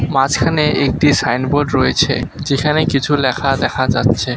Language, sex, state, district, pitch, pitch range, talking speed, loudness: Bengali, male, West Bengal, Alipurduar, 135 Hz, 125-140 Hz, 125 wpm, -15 LUFS